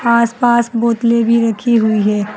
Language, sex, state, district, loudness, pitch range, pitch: Hindi, female, Uttar Pradesh, Saharanpur, -13 LUFS, 225-235 Hz, 235 Hz